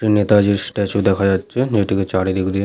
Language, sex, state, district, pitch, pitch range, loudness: Bengali, male, West Bengal, Malda, 100 Hz, 95-105 Hz, -17 LUFS